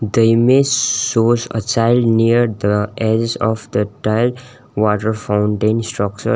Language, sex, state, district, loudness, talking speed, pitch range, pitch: English, male, Sikkim, Gangtok, -16 LUFS, 130 wpm, 105-120 Hz, 115 Hz